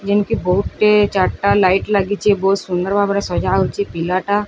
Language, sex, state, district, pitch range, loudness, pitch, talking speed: Odia, female, Odisha, Sambalpur, 185-205 Hz, -16 LUFS, 200 Hz, 160 wpm